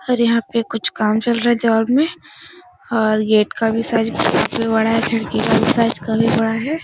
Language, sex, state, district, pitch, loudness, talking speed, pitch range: Hindi, female, Uttar Pradesh, Etah, 230 Hz, -17 LUFS, 220 wpm, 225-240 Hz